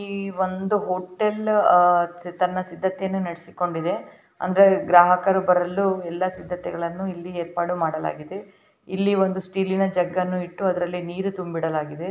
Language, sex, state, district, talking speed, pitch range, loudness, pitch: Kannada, female, Karnataka, Dharwad, 110 wpm, 175-190 Hz, -23 LUFS, 185 Hz